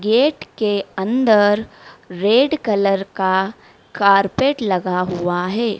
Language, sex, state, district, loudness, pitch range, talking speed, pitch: Hindi, female, Madhya Pradesh, Dhar, -18 LUFS, 190-225 Hz, 105 wpm, 205 Hz